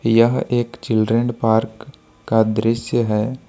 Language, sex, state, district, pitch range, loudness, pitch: Hindi, male, Jharkhand, Ranchi, 110-120 Hz, -18 LUFS, 115 Hz